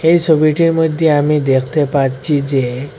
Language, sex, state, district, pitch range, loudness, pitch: Bengali, male, Assam, Hailakandi, 135-160 Hz, -14 LUFS, 150 Hz